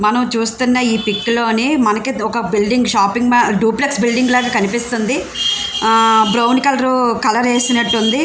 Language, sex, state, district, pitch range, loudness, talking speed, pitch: Telugu, female, Andhra Pradesh, Visakhapatnam, 220-250 Hz, -14 LUFS, 140 wpm, 235 Hz